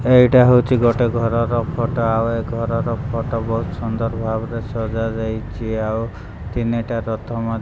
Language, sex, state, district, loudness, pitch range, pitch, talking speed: Odia, male, Odisha, Malkangiri, -19 LUFS, 110-115 Hz, 115 Hz, 135 wpm